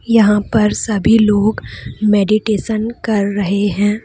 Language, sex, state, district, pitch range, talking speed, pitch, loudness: Hindi, female, Jharkhand, Deoghar, 205-220 Hz, 120 wpm, 210 Hz, -15 LUFS